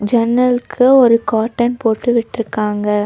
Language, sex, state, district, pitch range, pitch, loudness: Tamil, female, Tamil Nadu, Nilgiris, 220-245 Hz, 235 Hz, -14 LUFS